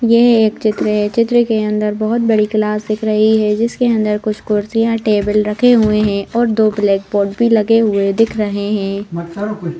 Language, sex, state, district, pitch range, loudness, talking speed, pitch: Hindi, female, Madhya Pradesh, Bhopal, 210-225 Hz, -14 LUFS, 190 wpm, 215 Hz